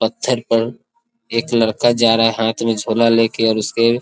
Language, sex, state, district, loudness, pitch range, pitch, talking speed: Hindi, male, Bihar, East Champaran, -16 LUFS, 115-120 Hz, 115 Hz, 210 wpm